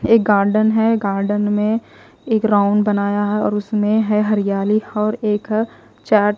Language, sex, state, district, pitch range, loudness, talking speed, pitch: Hindi, female, Himachal Pradesh, Shimla, 205-220 Hz, -17 LUFS, 160 wpm, 210 Hz